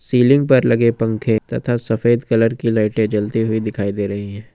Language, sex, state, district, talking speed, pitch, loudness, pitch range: Hindi, male, Jharkhand, Ranchi, 200 wpm, 115 Hz, -17 LUFS, 105-120 Hz